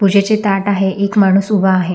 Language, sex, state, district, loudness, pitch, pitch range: Marathi, female, Maharashtra, Sindhudurg, -13 LUFS, 195 Hz, 195-205 Hz